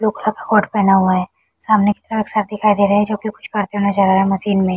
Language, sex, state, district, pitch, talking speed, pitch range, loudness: Hindi, female, Chhattisgarh, Bilaspur, 205 Hz, 315 wpm, 195-215 Hz, -16 LUFS